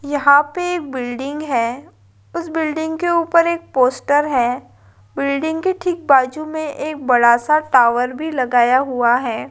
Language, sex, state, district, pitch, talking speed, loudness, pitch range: Hindi, female, West Bengal, Malda, 280 Hz, 150 wpm, -17 LUFS, 245-315 Hz